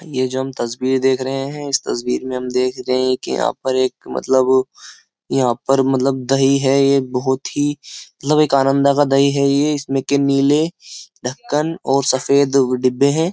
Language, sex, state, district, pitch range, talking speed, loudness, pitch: Hindi, male, Uttar Pradesh, Jyotiba Phule Nagar, 130-140 Hz, 190 wpm, -17 LUFS, 135 Hz